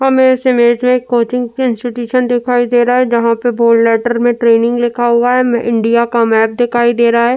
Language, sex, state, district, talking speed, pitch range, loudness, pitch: Hindi, female, Uttar Pradesh, Jyotiba Phule Nagar, 210 wpm, 235-245 Hz, -12 LUFS, 240 Hz